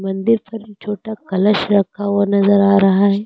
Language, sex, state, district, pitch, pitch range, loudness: Hindi, female, Uttar Pradesh, Lucknow, 200 Hz, 200-210 Hz, -15 LUFS